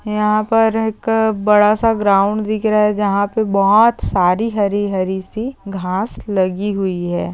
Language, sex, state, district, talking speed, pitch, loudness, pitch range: Hindi, female, Maharashtra, Chandrapur, 155 wpm, 210 Hz, -16 LUFS, 195-220 Hz